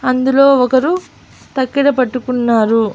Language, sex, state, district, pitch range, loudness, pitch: Telugu, female, Andhra Pradesh, Annamaya, 245-270 Hz, -13 LUFS, 255 Hz